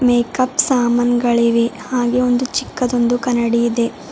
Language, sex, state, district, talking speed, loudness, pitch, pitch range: Kannada, female, Karnataka, Bidar, 115 wpm, -16 LUFS, 245 Hz, 235-250 Hz